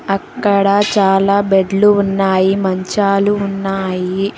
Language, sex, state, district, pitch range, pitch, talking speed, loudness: Telugu, female, Telangana, Hyderabad, 195-200 Hz, 195 Hz, 80 wpm, -14 LUFS